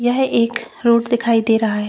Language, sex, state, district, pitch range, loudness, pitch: Hindi, female, Chhattisgarh, Bilaspur, 225-240 Hz, -17 LUFS, 235 Hz